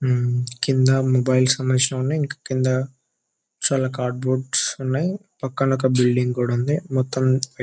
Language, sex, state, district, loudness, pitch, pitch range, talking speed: Telugu, male, Telangana, Nalgonda, -21 LUFS, 130 Hz, 125-135 Hz, 125 wpm